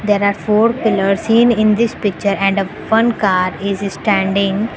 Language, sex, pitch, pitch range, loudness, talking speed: English, female, 205 Hz, 195-220 Hz, -15 LUFS, 165 wpm